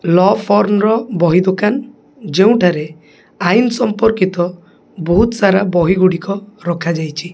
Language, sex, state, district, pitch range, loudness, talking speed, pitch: Odia, male, Odisha, Khordha, 175-210 Hz, -14 LUFS, 105 wpm, 190 Hz